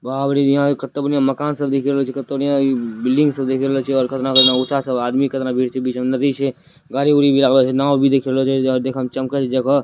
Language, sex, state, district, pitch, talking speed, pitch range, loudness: Hindi, male, Bihar, Purnia, 135 Hz, 260 wpm, 130-140 Hz, -17 LUFS